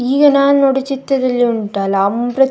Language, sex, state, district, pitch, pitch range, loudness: Kannada, female, Karnataka, Dakshina Kannada, 265 Hz, 235-275 Hz, -14 LUFS